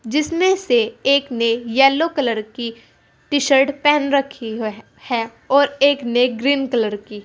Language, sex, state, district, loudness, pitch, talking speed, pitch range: Hindi, female, Uttar Pradesh, Saharanpur, -18 LUFS, 270 Hz, 155 wpm, 230-285 Hz